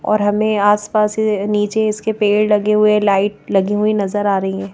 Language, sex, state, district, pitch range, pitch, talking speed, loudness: Hindi, female, Madhya Pradesh, Bhopal, 205-215 Hz, 210 Hz, 190 wpm, -16 LUFS